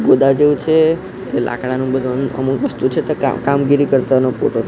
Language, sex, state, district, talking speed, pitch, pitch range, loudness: Gujarati, male, Gujarat, Gandhinagar, 165 wpm, 135 Hz, 130-145 Hz, -16 LUFS